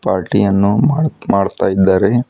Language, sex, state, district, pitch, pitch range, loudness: Kannada, female, Karnataka, Bidar, 100 Hz, 95-120 Hz, -14 LUFS